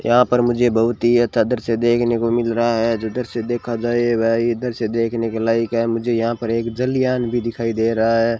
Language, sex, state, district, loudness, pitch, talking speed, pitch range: Hindi, male, Rajasthan, Bikaner, -19 LUFS, 115 Hz, 245 wpm, 115-120 Hz